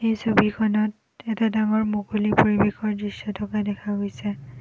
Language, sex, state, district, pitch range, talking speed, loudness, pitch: Assamese, female, Assam, Kamrup Metropolitan, 205-220 Hz, 130 wpm, -23 LUFS, 210 Hz